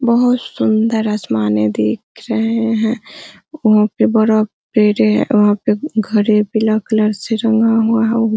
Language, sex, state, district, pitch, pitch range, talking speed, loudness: Hindi, female, Bihar, Araria, 220 Hz, 210-225 Hz, 150 wpm, -15 LUFS